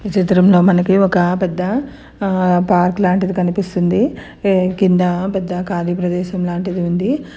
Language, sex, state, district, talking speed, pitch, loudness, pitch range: Telugu, female, Andhra Pradesh, Anantapur, 120 wpm, 185 Hz, -16 LUFS, 180-190 Hz